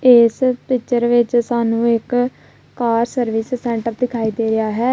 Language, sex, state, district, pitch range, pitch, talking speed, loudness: Punjabi, female, Punjab, Kapurthala, 230-245 Hz, 235 Hz, 145 wpm, -17 LUFS